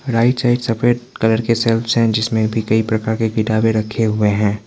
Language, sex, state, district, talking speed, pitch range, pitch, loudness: Hindi, male, Arunachal Pradesh, Lower Dibang Valley, 190 wpm, 110-115 Hz, 110 Hz, -17 LUFS